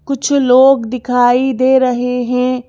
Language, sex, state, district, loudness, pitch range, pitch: Hindi, female, Madhya Pradesh, Bhopal, -12 LUFS, 250-265 Hz, 255 Hz